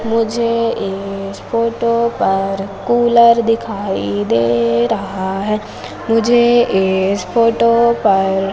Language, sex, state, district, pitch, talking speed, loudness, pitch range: Hindi, female, Madhya Pradesh, Umaria, 215 Hz, 90 wpm, -15 LUFS, 195-230 Hz